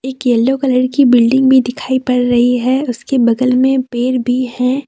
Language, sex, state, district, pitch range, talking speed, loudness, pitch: Hindi, female, Jharkhand, Deoghar, 245-260 Hz, 195 wpm, -13 LUFS, 255 Hz